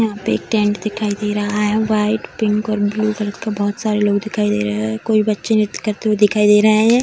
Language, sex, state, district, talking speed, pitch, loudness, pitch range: Hindi, female, Bihar, Darbhanga, 240 wpm, 210 Hz, -17 LUFS, 205-215 Hz